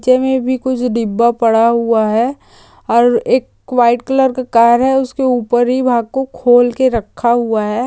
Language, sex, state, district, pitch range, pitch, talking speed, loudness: Hindi, female, Chhattisgarh, Korba, 235-255 Hz, 245 Hz, 185 wpm, -13 LUFS